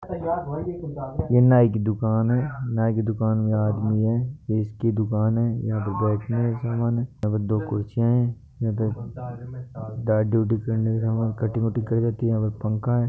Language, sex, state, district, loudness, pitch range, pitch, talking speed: Hindi, male, Rajasthan, Nagaur, -24 LUFS, 110-120 Hz, 115 Hz, 195 wpm